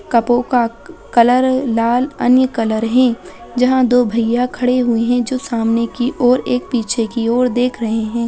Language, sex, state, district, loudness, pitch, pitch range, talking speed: Bajjika, female, Bihar, Vaishali, -15 LUFS, 245 Hz, 230-250 Hz, 175 wpm